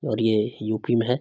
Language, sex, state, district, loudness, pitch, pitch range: Hindi, male, Bihar, Samastipur, -24 LUFS, 110 Hz, 110-120 Hz